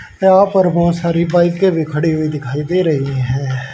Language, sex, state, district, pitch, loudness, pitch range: Hindi, male, Haryana, Rohtak, 165 Hz, -15 LUFS, 145-175 Hz